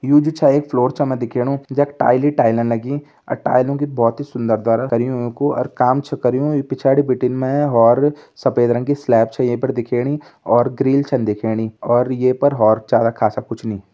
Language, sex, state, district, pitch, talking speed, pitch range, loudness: Hindi, female, Uttarakhand, Tehri Garhwal, 125 Hz, 225 wpm, 115-140 Hz, -17 LUFS